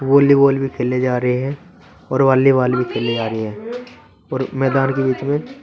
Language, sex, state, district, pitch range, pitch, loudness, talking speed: Hindi, male, Uttar Pradesh, Saharanpur, 125-140 Hz, 135 Hz, -17 LUFS, 190 wpm